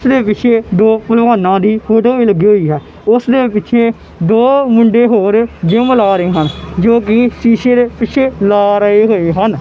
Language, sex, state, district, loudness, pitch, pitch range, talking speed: Punjabi, male, Punjab, Kapurthala, -11 LUFS, 225 Hz, 205-235 Hz, 195 wpm